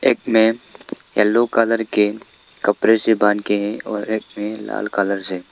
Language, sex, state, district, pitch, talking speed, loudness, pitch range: Hindi, male, Arunachal Pradesh, Lower Dibang Valley, 105 Hz, 175 wpm, -18 LUFS, 105-110 Hz